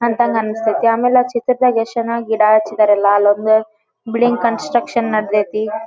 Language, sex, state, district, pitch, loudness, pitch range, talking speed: Kannada, female, Karnataka, Dharwad, 225 Hz, -15 LUFS, 215-235 Hz, 135 wpm